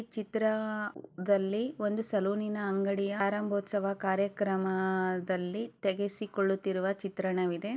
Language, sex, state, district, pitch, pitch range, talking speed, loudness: Kannada, female, Karnataka, Chamarajanagar, 200 Hz, 190-210 Hz, 60 wpm, -32 LUFS